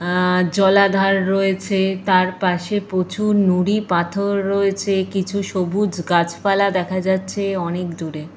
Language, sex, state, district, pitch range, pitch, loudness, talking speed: Bengali, female, Jharkhand, Jamtara, 180-200 Hz, 190 Hz, -19 LUFS, 115 wpm